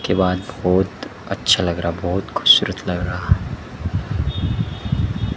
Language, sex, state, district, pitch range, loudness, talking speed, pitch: Hindi, male, Madhya Pradesh, Dhar, 90-100 Hz, -20 LUFS, 110 wpm, 95 Hz